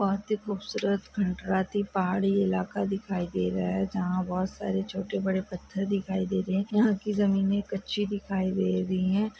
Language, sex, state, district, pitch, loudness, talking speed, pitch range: Hindi, male, Jharkhand, Jamtara, 195 Hz, -29 LUFS, 170 wpm, 185-200 Hz